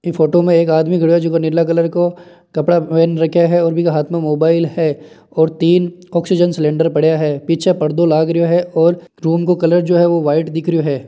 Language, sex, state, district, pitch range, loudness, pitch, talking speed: Marwari, male, Rajasthan, Nagaur, 160-175 Hz, -14 LUFS, 165 Hz, 220 wpm